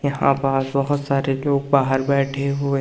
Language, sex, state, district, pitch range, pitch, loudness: Hindi, male, Madhya Pradesh, Umaria, 135-140 Hz, 140 Hz, -20 LUFS